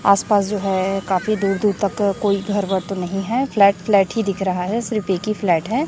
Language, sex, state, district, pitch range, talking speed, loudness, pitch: Hindi, female, Chhattisgarh, Raipur, 190-210 Hz, 255 wpm, -19 LUFS, 200 Hz